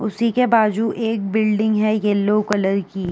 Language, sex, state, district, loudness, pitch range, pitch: Hindi, female, Uttar Pradesh, Jyotiba Phule Nagar, -19 LUFS, 205-220 Hz, 215 Hz